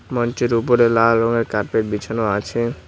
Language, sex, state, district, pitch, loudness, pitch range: Bengali, male, West Bengal, Cooch Behar, 115 Hz, -18 LUFS, 110-120 Hz